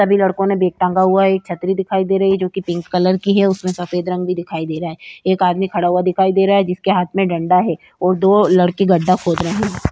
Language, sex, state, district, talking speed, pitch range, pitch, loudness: Hindi, female, Uttar Pradesh, Jyotiba Phule Nagar, 285 wpm, 180-195 Hz, 185 Hz, -16 LUFS